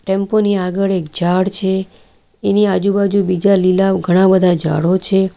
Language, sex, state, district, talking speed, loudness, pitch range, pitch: Gujarati, female, Gujarat, Valsad, 155 wpm, -14 LUFS, 180-195 Hz, 190 Hz